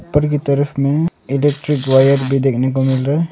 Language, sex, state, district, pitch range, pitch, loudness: Hindi, male, Arunachal Pradesh, Longding, 135-145 Hz, 140 Hz, -16 LUFS